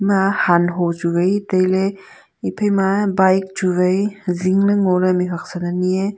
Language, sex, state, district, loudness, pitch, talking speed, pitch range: Wancho, female, Arunachal Pradesh, Longding, -18 LUFS, 185 Hz, 195 wpm, 180-195 Hz